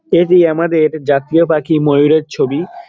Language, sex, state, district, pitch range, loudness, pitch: Bengali, male, West Bengal, Dakshin Dinajpur, 150-170 Hz, -13 LUFS, 155 Hz